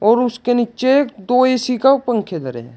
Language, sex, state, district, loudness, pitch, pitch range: Hindi, male, Uttar Pradesh, Shamli, -16 LUFS, 245 Hz, 210-255 Hz